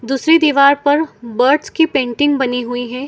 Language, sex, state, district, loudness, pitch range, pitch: Hindi, female, Chhattisgarh, Bilaspur, -14 LUFS, 245-295 Hz, 275 Hz